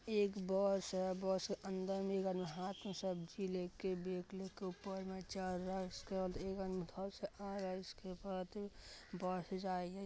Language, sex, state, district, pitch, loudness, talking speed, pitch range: Hindi, female, Bihar, Madhepura, 190 Hz, -43 LUFS, 175 wpm, 185-195 Hz